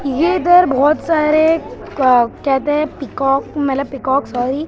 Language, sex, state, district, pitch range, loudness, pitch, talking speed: Hindi, male, Maharashtra, Mumbai Suburban, 270-310 Hz, -15 LUFS, 285 Hz, 155 wpm